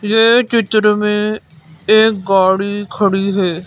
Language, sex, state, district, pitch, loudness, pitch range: Hindi, female, Madhya Pradesh, Bhopal, 205 Hz, -13 LUFS, 190-215 Hz